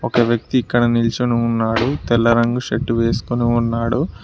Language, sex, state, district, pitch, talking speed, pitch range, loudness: Telugu, male, Telangana, Mahabubabad, 120 Hz, 140 wpm, 115-120 Hz, -18 LUFS